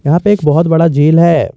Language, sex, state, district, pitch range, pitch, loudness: Hindi, male, Jharkhand, Garhwa, 150-170 Hz, 165 Hz, -10 LUFS